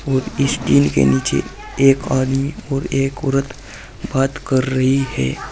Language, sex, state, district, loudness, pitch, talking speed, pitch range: Hindi, male, Uttar Pradesh, Saharanpur, -18 LUFS, 135 Hz, 140 wpm, 130-135 Hz